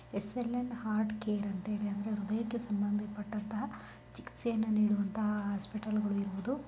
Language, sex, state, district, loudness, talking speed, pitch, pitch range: Kannada, female, Karnataka, Bellary, -35 LUFS, 135 wpm, 210 Hz, 205-220 Hz